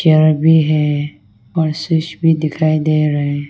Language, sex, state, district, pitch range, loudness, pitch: Hindi, female, Arunachal Pradesh, Longding, 150-160 Hz, -15 LUFS, 155 Hz